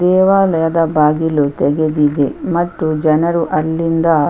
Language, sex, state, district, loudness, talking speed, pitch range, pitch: Kannada, female, Karnataka, Chamarajanagar, -14 LUFS, 95 wpm, 150-170 Hz, 160 Hz